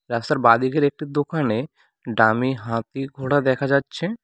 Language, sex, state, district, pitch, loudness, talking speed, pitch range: Bengali, male, West Bengal, Cooch Behar, 135 Hz, -21 LUFS, 125 wpm, 120-145 Hz